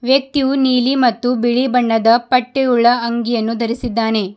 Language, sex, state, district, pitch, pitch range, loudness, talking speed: Kannada, female, Karnataka, Bidar, 245 Hz, 230-255 Hz, -15 LUFS, 110 wpm